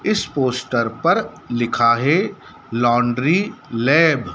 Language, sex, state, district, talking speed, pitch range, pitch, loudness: Hindi, male, Madhya Pradesh, Dhar, 110 wpm, 120-165 Hz, 130 Hz, -18 LUFS